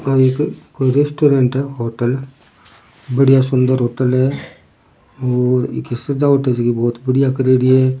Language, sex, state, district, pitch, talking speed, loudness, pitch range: Rajasthani, male, Rajasthan, Churu, 130 Hz, 140 wpm, -16 LUFS, 125-135 Hz